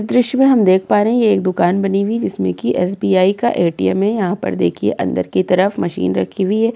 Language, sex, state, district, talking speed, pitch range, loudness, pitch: Hindi, female, Uttar Pradesh, Jyotiba Phule Nagar, 265 wpm, 180-220 Hz, -16 LUFS, 195 Hz